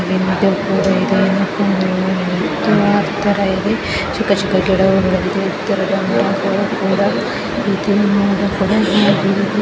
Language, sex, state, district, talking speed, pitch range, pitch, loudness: Kannada, male, Karnataka, Mysore, 45 wpm, 190-200 Hz, 195 Hz, -16 LUFS